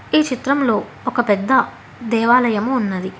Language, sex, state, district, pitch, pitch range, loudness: Telugu, female, Telangana, Hyderabad, 240 Hz, 215-260 Hz, -18 LUFS